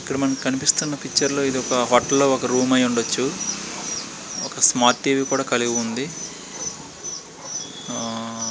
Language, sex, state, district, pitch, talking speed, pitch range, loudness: Telugu, male, Andhra Pradesh, Srikakulam, 130 Hz, 150 wpm, 120-135 Hz, -21 LUFS